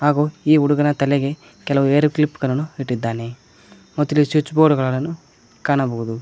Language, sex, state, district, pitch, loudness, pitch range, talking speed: Kannada, male, Karnataka, Koppal, 145 Hz, -19 LUFS, 130-150 Hz, 145 wpm